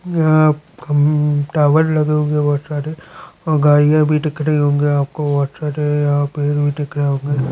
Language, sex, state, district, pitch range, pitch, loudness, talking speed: Hindi, male, Chhattisgarh, Bastar, 145-155 Hz, 150 Hz, -16 LUFS, 150 wpm